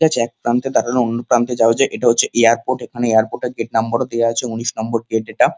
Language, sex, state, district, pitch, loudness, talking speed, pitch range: Bengali, male, West Bengal, Kolkata, 115 Hz, -17 LUFS, 215 wpm, 115-120 Hz